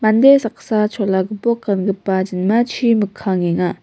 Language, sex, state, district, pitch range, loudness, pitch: Garo, female, Meghalaya, West Garo Hills, 190-230 Hz, -17 LUFS, 210 Hz